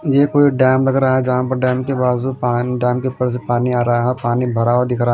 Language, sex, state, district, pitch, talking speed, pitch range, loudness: Hindi, male, Himachal Pradesh, Shimla, 125 Hz, 290 wpm, 120-130 Hz, -16 LUFS